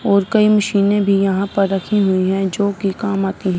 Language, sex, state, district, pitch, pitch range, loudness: Hindi, female, Punjab, Fazilka, 200 Hz, 195-205 Hz, -16 LUFS